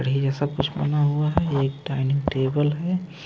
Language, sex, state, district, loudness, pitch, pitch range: Hindi, male, Maharashtra, Mumbai Suburban, -23 LUFS, 145 Hz, 135-150 Hz